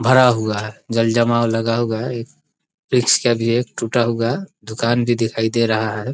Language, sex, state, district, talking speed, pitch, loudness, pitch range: Hindi, male, Bihar, East Champaran, 195 wpm, 115 Hz, -18 LUFS, 110-120 Hz